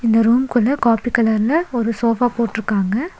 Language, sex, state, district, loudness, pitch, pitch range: Tamil, female, Tamil Nadu, Nilgiris, -17 LUFS, 235 Hz, 225-245 Hz